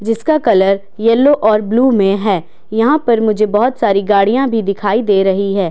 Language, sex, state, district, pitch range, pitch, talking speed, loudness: Hindi, female, Delhi, New Delhi, 200-230 Hz, 215 Hz, 190 wpm, -13 LUFS